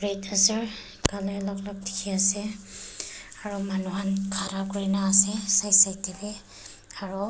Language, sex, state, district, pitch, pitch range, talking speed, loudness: Nagamese, female, Nagaland, Dimapur, 195 Hz, 195-205 Hz, 130 wpm, -24 LUFS